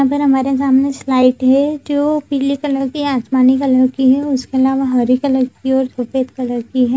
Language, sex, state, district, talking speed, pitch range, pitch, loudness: Hindi, female, Bihar, Jamui, 205 wpm, 255-275 Hz, 265 Hz, -15 LUFS